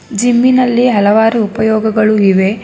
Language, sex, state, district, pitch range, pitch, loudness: Kannada, female, Karnataka, Bangalore, 210-240 Hz, 220 Hz, -11 LUFS